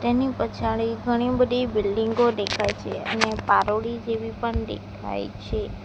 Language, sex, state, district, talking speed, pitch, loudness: Gujarati, female, Gujarat, Valsad, 135 wpm, 225 Hz, -25 LUFS